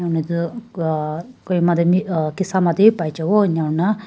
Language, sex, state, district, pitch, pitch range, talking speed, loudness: Nagamese, female, Nagaland, Kohima, 175 Hz, 160-200 Hz, 145 wpm, -19 LUFS